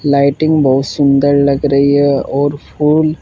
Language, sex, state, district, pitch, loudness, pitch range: Hindi, male, Uttar Pradesh, Saharanpur, 140 Hz, -12 LUFS, 140-150 Hz